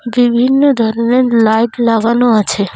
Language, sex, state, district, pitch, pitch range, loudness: Bengali, female, West Bengal, Cooch Behar, 235 Hz, 225-245 Hz, -11 LUFS